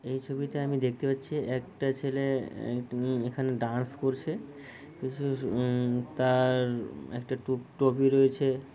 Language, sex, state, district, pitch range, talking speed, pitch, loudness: Bengali, male, West Bengal, Malda, 125-135 Hz, 110 wpm, 130 Hz, -30 LUFS